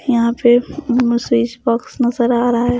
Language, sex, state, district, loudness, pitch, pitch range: Hindi, female, Bihar, Patna, -16 LUFS, 240 Hz, 235-245 Hz